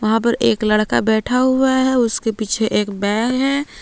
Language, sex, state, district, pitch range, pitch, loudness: Hindi, female, Jharkhand, Palamu, 215-255 Hz, 225 Hz, -17 LUFS